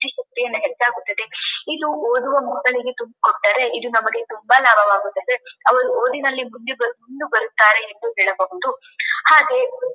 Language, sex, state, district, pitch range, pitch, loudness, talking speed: Kannada, female, Karnataka, Dharwad, 225-295 Hz, 250 Hz, -18 LUFS, 90 wpm